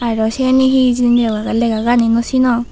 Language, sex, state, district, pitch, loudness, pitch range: Chakma, female, Tripura, Unakoti, 235 Hz, -14 LUFS, 230-250 Hz